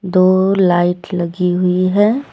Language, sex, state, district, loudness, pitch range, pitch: Hindi, female, Jharkhand, Deoghar, -14 LUFS, 180-190 Hz, 185 Hz